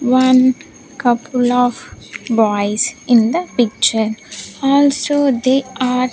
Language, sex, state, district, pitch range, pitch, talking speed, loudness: English, female, Andhra Pradesh, Sri Satya Sai, 235-270 Hz, 250 Hz, 100 wpm, -15 LUFS